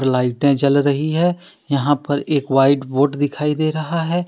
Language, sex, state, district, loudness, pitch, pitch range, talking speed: Hindi, male, Jharkhand, Deoghar, -18 LUFS, 145 Hz, 140-155 Hz, 180 wpm